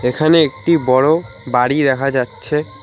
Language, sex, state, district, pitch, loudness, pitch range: Bengali, male, West Bengal, Alipurduar, 135 Hz, -15 LUFS, 125-155 Hz